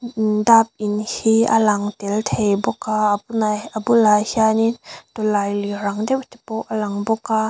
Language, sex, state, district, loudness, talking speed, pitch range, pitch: Mizo, female, Mizoram, Aizawl, -19 LUFS, 190 wpm, 210-225 Hz, 220 Hz